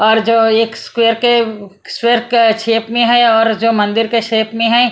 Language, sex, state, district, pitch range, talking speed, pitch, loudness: Hindi, female, Punjab, Kapurthala, 225-235 Hz, 205 wpm, 225 Hz, -13 LUFS